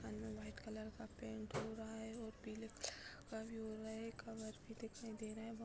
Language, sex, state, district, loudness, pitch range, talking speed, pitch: Hindi, female, Uttar Pradesh, Budaun, -50 LUFS, 215-225 Hz, 255 wpm, 220 Hz